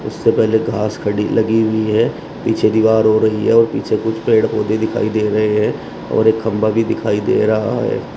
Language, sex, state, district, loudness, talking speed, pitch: Hindi, male, Uttar Pradesh, Shamli, -16 LUFS, 220 wpm, 110 Hz